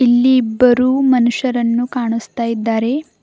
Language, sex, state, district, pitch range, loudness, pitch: Kannada, female, Karnataka, Bidar, 235-255 Hz, -15 LUFS, 245 Hz